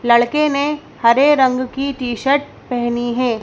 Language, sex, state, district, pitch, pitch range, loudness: Hindi, female, Madhya Pradesh, Bhopal, 255 Hz, 240-280 Hz, -17 LUFS